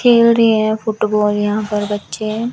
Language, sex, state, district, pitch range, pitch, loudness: Hindi, female, Chandigarh, Chandigarh, 210-225 Hz, 215 Hz, -16 LUFS